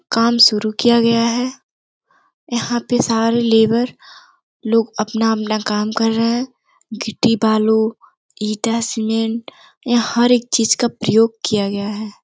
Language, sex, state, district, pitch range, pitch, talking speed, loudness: Hindi, female, Uttar Pradesh, Gorakhpur, 220-235 Hz, 225 Hz, 135 wpm, -17 LUFS